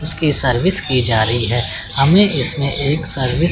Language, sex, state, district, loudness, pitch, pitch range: Hindi, male, Chandigarh, Chandigarh, -15 LUFS, 140 Hz, 125-155 Hz